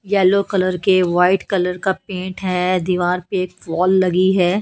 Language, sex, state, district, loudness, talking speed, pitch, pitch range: Hindi, female, Haryana, Charkhi Dadri, -18 LUFS, 170 wpm, 185 Hz, 180-190 Hz